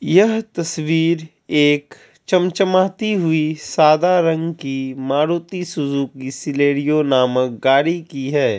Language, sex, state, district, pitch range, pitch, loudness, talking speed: Hindi, male, Bihar, Kishanganj, 140-170 Hz, 155 Hz, -18 LUFS, 105 wpm